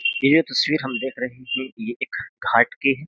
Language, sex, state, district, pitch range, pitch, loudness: Hindi, male, Uttar Pradesh, Jyotiba Phule Nagar, 130-155 Hz, 130 Hz, -22 LUFS